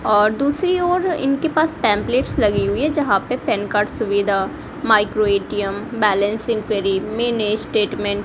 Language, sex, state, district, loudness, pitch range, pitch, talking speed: Hindi, female, Bihar, Kaimur, -19 LUFS, 205-280 Hz, 215 Hz, 155 wpm